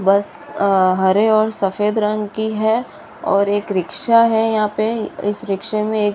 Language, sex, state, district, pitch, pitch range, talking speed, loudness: Hindi, female, Bihar, Saharsa, 210 Hz, 200-220 Hz, 185 wpm, -17 LUFS